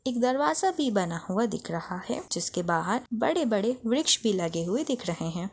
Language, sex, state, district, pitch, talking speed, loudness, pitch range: Hindi, female, Chhattisgarh, Balrampur, 220 Hz, 195 wpm, -28 LUFS, 175-255 Hz